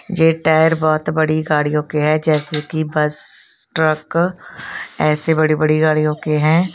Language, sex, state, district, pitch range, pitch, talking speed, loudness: Hindi, female, Punjab, Kapurthala, 150-160 Hz, 155 Hz, 150 wpm, -17 LUFS